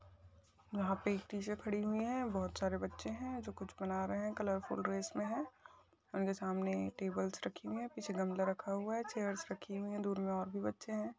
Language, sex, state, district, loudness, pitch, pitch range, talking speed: Hindi, female, Maharashtra, Nagpur, -40 LUFS, 195 Hz, 185-210 Hz, 225 wpm